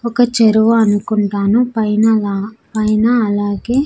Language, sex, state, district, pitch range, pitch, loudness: Telugu, female, Andhra Pradesh, Sri Satya Sai, 205-230 Hz, 220 Hz, -14 LUFS